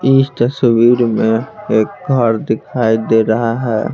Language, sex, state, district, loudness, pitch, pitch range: Hindi, male, Bihar, Patna, -14 LUFS, 115 Hz, 110-125 Hz